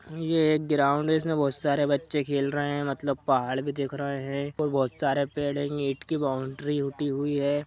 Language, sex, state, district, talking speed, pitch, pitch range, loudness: Hindi, male, Jharkhand, Sahebganj, 195 wpm, 145 Hz, 140-145 Hz, -27 LUFS